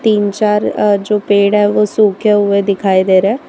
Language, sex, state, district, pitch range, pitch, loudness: Hindi, female, Gujarat, Valsad, 200-210 Hz, 205 Hz, -12 LUFS